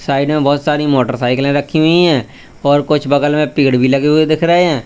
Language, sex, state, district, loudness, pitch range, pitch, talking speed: Hindi, male, Uttar Pradesh, Lalitpur, -13 LUFS, 135-155 Hz, 145 Hz, 235 wpm